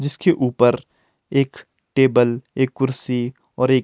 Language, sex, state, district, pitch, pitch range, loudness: Hindi, male, Himachal Pradesh, Shimla, 130 Hz, 125-135 Hz, -20 LUFS